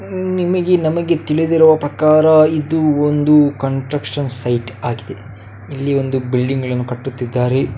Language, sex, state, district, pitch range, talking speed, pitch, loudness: Kannada, male, Karnataka, Dakshina Kannada, 125-155 Hz, 125 wpm, 140 Hz, -15 LUFS